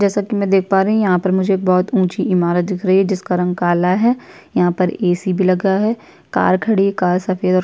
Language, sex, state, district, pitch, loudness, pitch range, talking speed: Hindi, female, Chhattisgarh, Sukma, 185 Hz, -16 LUFS, 180-200 Hz, 265 wpm